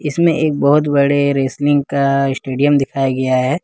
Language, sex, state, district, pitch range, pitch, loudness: Hindi, male, Jharkhand, Ranchi, 135-145 Hz, 140 Hz, -15 LUFS